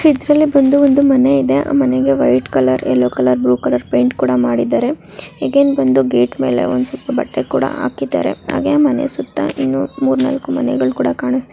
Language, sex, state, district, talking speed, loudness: Kannada, female, Karnataka, Raichur, 175 wpm, -14 LUFS